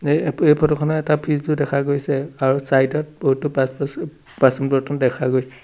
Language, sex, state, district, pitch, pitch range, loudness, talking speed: Assamese, male, Assam, Sonitpur, 145 Hz, 135-150 Hz, -19 LUFS, 180 wpm